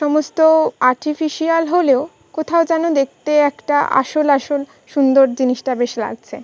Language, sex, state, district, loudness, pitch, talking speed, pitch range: Bengali, female, West Bengal, Kolkata, -16 LUFS, 290 Hz, 120 wpm, 265-315 Hz